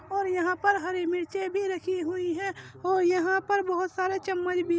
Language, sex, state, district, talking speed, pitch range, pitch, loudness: Hindi, female, Uttar Pradesh, Jyotiba Phule Nagar, 215 wpm, 360-385 Hz, 370 Hz, -28 LUFS